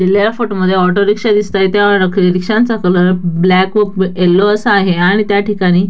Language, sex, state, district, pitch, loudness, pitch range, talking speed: Marathi, female, Maharashtra, Dhule, 195 Hz, -12 LUFS, 185-205 Hz, 175 wpm